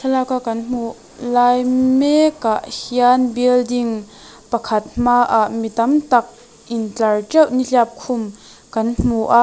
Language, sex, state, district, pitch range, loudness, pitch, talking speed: Mizo, female, Mizoram, Aizawl, 225-250 Hz, -17 LUFS, 240 Hz, 115 wpm